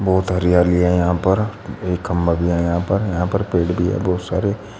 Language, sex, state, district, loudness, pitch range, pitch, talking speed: Hindi, male, Uttar Pradesh, Shamli, -19 LUFS, 90-100 Hz, 90 Hz, 225 wpm